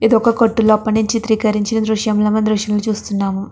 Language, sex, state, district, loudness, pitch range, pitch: Telugu, female, Andhra Pradesh, Krishna, -16 LUFS, 210-225 Hz, 215 Hz